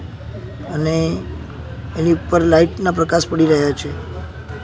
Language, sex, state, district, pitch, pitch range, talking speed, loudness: Gujarati, male, Gujarat, Gandhinagar, 155 Hz, 105-165 Hz, 115 wpm, -17 LUFS